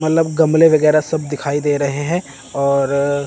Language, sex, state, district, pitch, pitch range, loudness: Hindi, male, Chandigarh, Chandigarh, 145 Hz, 140-155 Hz, -16 LUFS